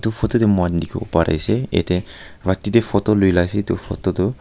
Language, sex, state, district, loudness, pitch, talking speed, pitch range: Nagamese, male, Nagaland, Kohima, -19 LUFS, 100 Hz, 215 wpm, 90-110 Hz